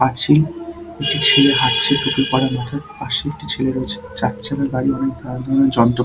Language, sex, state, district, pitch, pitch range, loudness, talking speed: Bengali, male, West Bengal, Dakshin Dinajpur, 135 Hz, 130-140 Hz, -17 LUFS, 190 wpm